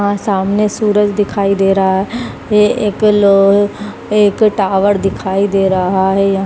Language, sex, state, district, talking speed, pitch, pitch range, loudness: Hindi, female, Uttar Pradesh, Budaun, 165 wpm, 200 Hz, 195-210 Hz, -13 LUFS